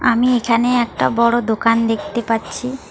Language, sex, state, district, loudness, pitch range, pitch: Bengali, female, West Bengal, Alipurduar, -17 LUFS, 230-245 Hz, 235 Hz